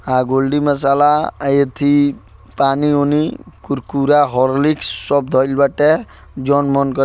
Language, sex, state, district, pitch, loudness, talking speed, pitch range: Bhojpuri, male, Bihar, Gopalganj, 140 Hz, -15 LUFS, 120 wpm, 135-145 Hz